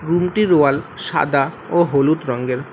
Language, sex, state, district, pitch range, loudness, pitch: Bengali, male, West Bengal, Alipurduar, 140-175 Hz, -17 LUFS, 155 Hz